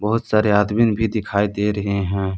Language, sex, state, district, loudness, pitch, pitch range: Hindi, male, Jharkhand, Palamu, -19 LUFS, 105 Hz, 100-110 Hz